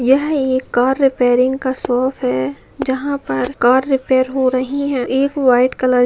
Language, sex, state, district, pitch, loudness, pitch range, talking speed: Hindi, female, Bihar, Begusarai, 260 Hz, -16 LUFS, 250-270 Hz, 180 wpm